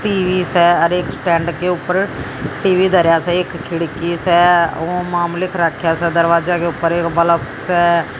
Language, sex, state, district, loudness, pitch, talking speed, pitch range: Hindi, female, Haryana, Jhajjar, -15 LUFS, 170 Hz, 170 wpm, 170-180 Hz